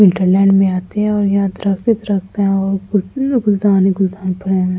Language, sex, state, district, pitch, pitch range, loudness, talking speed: Hindi, female, Delhi, New Delhi, 195 Hz, 190-205 Hz, -15 LUFS, 240 wpm